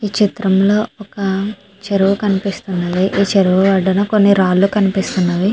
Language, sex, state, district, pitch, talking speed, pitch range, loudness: Telugu, female, Andhra Pradesh, Chittoor, 195 Hz, 120 wpm, 190-205 Hz, -15 LUFS